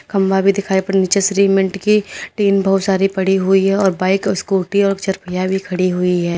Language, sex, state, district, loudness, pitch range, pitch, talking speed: Hindi, female, Uttar Pradesh, Lalitpur, -16 LUFS, 190-195 Hz, 195 Hz, 215 wpm